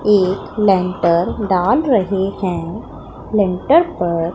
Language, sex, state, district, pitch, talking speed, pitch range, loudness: Hindi, female, Punjab, Pathankot, 190 Hz, 95 wpm, 180-210 Hz, -16 LUFS